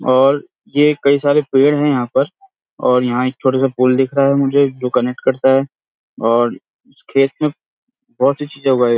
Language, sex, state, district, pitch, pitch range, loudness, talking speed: Hindi, male, Uttarakhand, Uttarkashi, 135 Hz, 130-145 Hz, -15 LUFS, 200 wpm